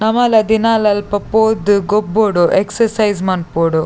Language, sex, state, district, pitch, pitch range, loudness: Tulu, female, Karnataka, Dakshina Kannada, 210 Hz, 190-220 Hz, -14 LUFS